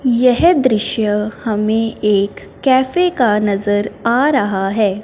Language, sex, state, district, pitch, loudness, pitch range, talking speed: Hindi, female, Punjab, Fazilka, 220 Hz, -15 LUFS, 210-255 Hz, 120 wpm